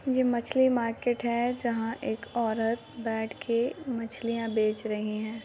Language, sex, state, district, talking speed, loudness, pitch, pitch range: Hindi, female, Bihar, Muzaffarpur, 145 wpm, -29 LUFS, 230 Hz, 225-245 Hz